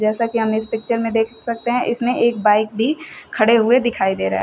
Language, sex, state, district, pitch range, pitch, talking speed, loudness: Hindi, female, Uttar Pradesh, Shamli, 220-235 Hz, 230 Hz, 255 wpm, -18 LUFS